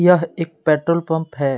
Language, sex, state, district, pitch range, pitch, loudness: Hindi, male, Jharkhand, Deoghar, 155-170 Hz, 165 Hz, -19 LUFS